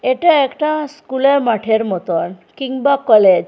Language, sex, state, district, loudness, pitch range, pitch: Bengali, female, Assam, Hailakandi, -15 LUFS, 215-280 Hz, 260 Hz